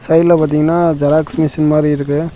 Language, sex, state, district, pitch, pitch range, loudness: Tamil, male, Tamil Nadu, Namakkal, 155 Hz, 150-160 Hz, -13 LUFS